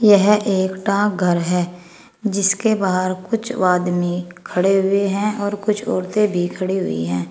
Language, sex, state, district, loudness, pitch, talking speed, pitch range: Hindi, female, Uttar Pradesh, Saharanpur, -19 LUFS, 195 Hz, 150 wpm, 180-210 Hz